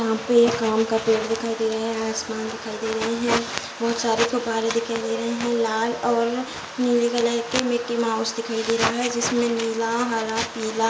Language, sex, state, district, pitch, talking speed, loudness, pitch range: Hindi, female, Bihar, Saharsa, 230 Hz, 230 wpm, -23 LUFS, 225-235 Hz